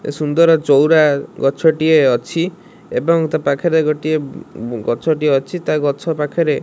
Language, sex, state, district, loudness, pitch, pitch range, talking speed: Odia, male, Odisha, Malkangiri, -16 LUFS, 155 Hz, 140-160 Hz, 135 wpm